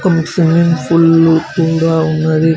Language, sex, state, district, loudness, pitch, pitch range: Telugu, male, Telangana, Mahabubabad, -12 LUFS, 165 Hz, 160-165 Hz